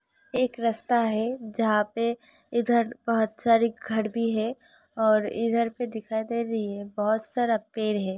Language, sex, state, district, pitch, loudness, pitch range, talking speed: Hindi, female, Uttar Pradesh, Hamirpur, 225 Hz, -26 LUFS, 220-235 Hz, 160 wpm